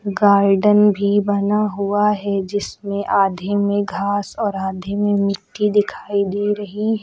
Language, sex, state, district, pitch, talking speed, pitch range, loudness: Hindi, female, Uttar Pradesh, Lucknow, 205 Hz, 145 wpm, 200-205 Hz, -18 LUFS